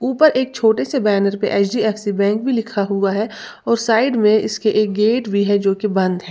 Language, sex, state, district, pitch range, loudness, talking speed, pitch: Hindi, female, Uttar Pradesh, Lalitpur, 200-225 Hz, -17 LUFS, 230 wpm, 215 Hz